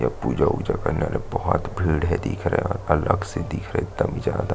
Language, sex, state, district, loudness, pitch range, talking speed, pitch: Hindi, male, Chhattisgarh, Jashpur, -24 LUFS, 80-95 Hz, 265 wpm, 85 Hz